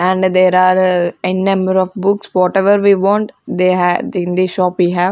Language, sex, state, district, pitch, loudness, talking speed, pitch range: English, female, Punjab, Fazilka, 185 Hz, -14 LUFS, 210 wpm, 180-195 Hz